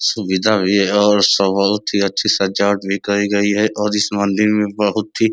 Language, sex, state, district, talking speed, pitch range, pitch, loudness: Hindi, male, Uttar Pradesh, Ghazipur, 225 wpm, 100-105 Hz, 100 Hz, -16 LUFS